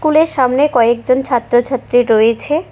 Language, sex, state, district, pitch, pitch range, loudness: Bengali, female, West Bengal, Cooch Behar, 255 Hz, 240-290 Hz, -13 LUFS